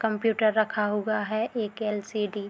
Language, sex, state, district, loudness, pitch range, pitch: Hindi, female, Bihar, Madhepura, -27 LUFS, 210-220 Hz, 215 Hz